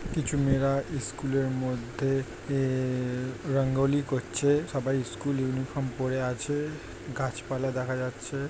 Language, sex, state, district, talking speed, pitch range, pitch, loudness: Bengali, male, West Bengal, Jhargram, 115 wpm, 130-140 Hz, 135 Hz, -29 LUFS